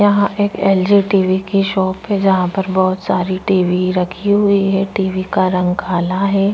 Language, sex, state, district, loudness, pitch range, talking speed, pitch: Hindi, female, Maharashtra, Chandrapur, -15 LUFS, 185-200 Hz, 185 wpm, 195 Hz